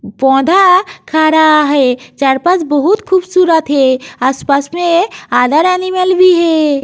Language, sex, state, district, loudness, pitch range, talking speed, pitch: Hindi, female, Uttar Pradesh, Jyotiba Phule Nagar, -11 LUFS, 275-365 Hz, 130 wpm, 315 Hz